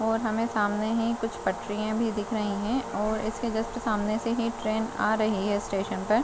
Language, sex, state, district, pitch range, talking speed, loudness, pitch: Hindi, female, Chhattisgarh, Bilaspur, 210-225 Hz, 220 wpm, -28 LUFS, 220 Hz